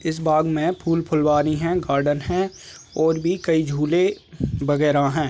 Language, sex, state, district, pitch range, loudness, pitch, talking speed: Hindi, male, Chhattisgarh, Raigarh, 150-170 Hz, -21 LUFS, 160 Hz, 160 wpm